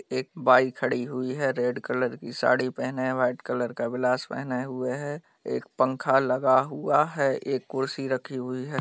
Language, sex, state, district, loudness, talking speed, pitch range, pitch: Hindi, male, Bihar, Bhagalpur, -26 LUFS, 185 wpm, 125-135 Hz, 130 Hz